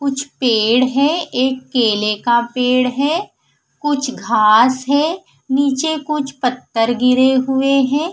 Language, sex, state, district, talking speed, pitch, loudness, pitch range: Hindi, female, Punjab, Fazilka, 125 wpm, 265 Hz, -16 LUFS, 250-285 Hz